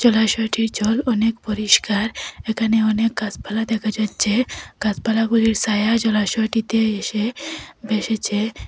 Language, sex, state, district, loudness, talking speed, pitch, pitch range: Bengali, female, Assam, Hailakandi, -20 LUFS, 95 wpm, 220 Hz, 215-225 Hz